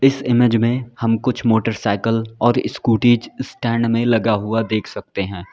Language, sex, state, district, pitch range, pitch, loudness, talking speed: Hindi, male, Uttar Pradesh, Lalitpur, 110-120 Hz, 115 Hz, -18 LUFS, 165 wpm